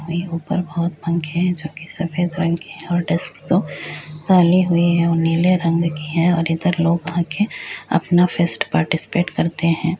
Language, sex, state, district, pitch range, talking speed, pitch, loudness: Hindi, female, Uttar Pradesh, Etah, 165-175 Hz, 180 wpm, 170 Hz, -18 LUFS